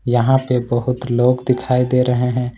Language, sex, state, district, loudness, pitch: Hindi, male, Jharkhand, Ranchi, -17 LUFS, 125 Hz